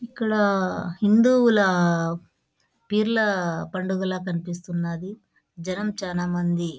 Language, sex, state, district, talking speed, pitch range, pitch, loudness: Telugu, female, Andhra Pradesh, Anantapur, 60 wpm, 175-210 Hz, 185 Hz, -23 LUFS